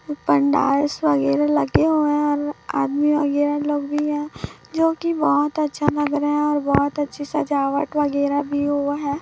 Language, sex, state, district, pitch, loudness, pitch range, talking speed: Hindi, female, Chhattisgarh, Raipur, 290 Hz, -20 LUFS, 285-295 Hz, 175 wpm